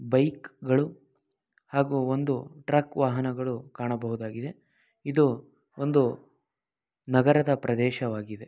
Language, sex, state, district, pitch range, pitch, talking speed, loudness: Kannada, male, Karnataka, Mysore, 120-140 Hz, 130 Hz, 80 wpm, -27 LUFS